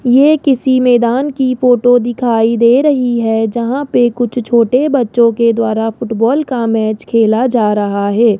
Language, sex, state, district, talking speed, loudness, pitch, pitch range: Hindi, male, Rajasthan, Jaipur, 165 wpm, -12 LUFS, 240 Hz, 225-255 Hz